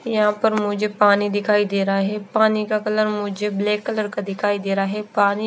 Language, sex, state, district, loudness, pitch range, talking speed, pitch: Hindi, female, Chandigarh, Chandigarh, -20 LUFS, 205-215 Hz, 220 wpm, 210 Hz